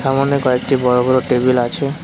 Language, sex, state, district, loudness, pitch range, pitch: Bengali, male, West Bengal, Cooch Behar, -15 LUFS, 125-140 Hz, 130 Hz